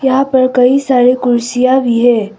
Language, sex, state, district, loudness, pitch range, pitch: Hindi, female, Arunachal Pradesh, Papum Pare, -11 LUFS, 245-260 Hz, 255 Hz